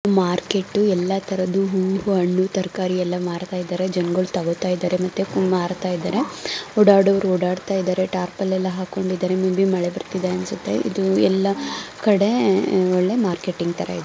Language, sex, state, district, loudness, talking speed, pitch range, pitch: Kannada, female, Karnataka, Mysore, -21 LUFS, 145 wpm, 180-195 Hz, 185 Hz